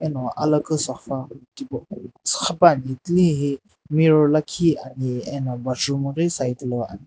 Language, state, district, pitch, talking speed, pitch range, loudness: Sumi, Nagaland, Dimapur, 140 Hz, 125 wpm, 130-155 Hz, -21 LUFS